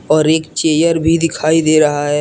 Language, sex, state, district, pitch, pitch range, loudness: Hindi, male, Jharkhand, Deoghar, 155 Hz, 155-165 Hz, -13 LUFS